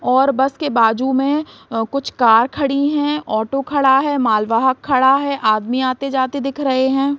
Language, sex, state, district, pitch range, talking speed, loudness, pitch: Hindi, female, Bihar, Saran, 250-280 Hz, 175 wpm, -17 LUFS, 265 Hz